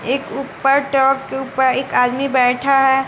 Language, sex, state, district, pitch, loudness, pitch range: Hindi, female, Bihar, West Champaran, 270 Hz, -16 LUFS, 260-270 Hz